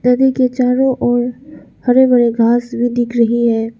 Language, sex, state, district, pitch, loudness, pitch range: Hindi, female, Arunachal Pradesh, Lower Dibang Valley, 245 Hz, -14 LUFS, 235-255 Hz